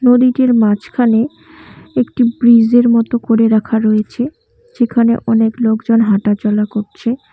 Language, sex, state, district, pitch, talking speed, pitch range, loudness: Bengali, female, West Bengal, Cooch Behar, 230 Hz, 115 wpm, 220-245 Hz, -13 LUFS